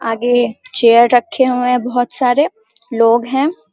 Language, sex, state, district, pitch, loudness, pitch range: Hindi, female, Bihar, Samastipur, 245 Hz, -14 LUFS, 235-260 Hz